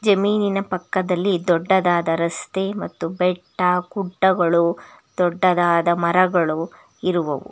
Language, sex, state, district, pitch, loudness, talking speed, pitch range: Kannada, female, Karnataka, Bangalore, 180 Hz, -20 LUFS, 70 wpm, 170-190 Hz